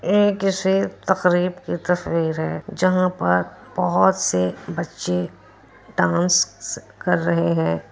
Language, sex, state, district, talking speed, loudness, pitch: Hindi, female, Bihar, Kishanganj, 115 wpm, -21 LUFS, 170 Hz